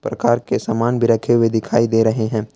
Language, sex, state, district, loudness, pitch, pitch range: Hindi, male, Jharkhand, Ranchi, -17 LUFS, 115 Hz, 110-120 Hz